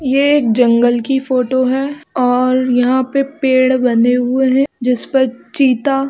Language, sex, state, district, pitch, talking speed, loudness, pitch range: Hindi, female, Bihar, East Champaran, 260 Hz, 155 wpm, -14 LUFS, 250-270 Hz